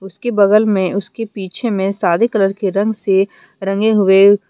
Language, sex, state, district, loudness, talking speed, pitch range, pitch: Hindi, female, Jharkhand, Deoghar, -15 LUFS, 175 wpm, 195-215 Hz, 200 Hz